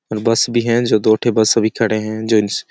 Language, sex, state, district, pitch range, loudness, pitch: Hindi, male, Chhattisgarh, Sarguja, 110-115 Hz, -16 LUFS, 110 Hz